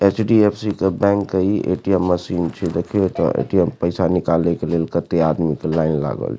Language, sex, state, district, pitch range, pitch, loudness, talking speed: Maithili, male, Bihar, Supaul, 85-100 Hz, 90 Hz, -19 LUFS, 190 wpm